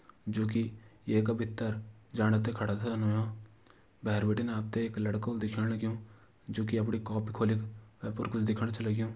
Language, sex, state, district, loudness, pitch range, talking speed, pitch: Garhwali, male, Uttarakhand, Uttarkashi, -33 LUFS, 110-115 Hz, 170 wpm, 110 Hz